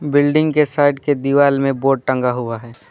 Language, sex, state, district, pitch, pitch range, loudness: Hindi, male, West Bengal, Alipurduar, 135 Hz, 125-145 Hz, -16 LUFS